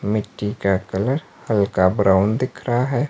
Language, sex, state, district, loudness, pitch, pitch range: Hindi, male, Himachal Pradesh, Shimla, -20 LUFS, 105 Hz, 100-125 Hz